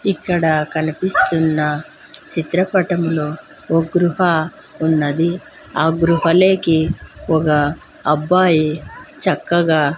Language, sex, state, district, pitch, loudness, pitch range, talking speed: Telugu, female, Andhra Pradesh, Sri Satya Sai, 165 Hz, -17 LUFS, 155-175 Hz, 65 wpm